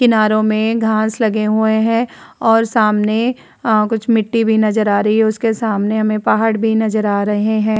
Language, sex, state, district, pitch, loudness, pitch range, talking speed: Hindi, female, Uttar Pradesh, Varanasi, 220 Hz, -15 LUFS, 215-225 Hz, 185 wpm